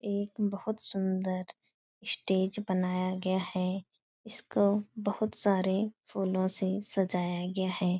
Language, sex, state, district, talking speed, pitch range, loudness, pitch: Hindi, female, Bihar, Supaul, 115 wpm, 185-205 Hz, -31 LUFS, 190 Hz